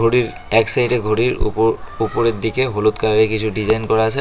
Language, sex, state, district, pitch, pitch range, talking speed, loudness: Bengali, male, West Bengal, Cooch Behar, 110 Hz, 110-115 Hz, 185 wpm, -17 LUFS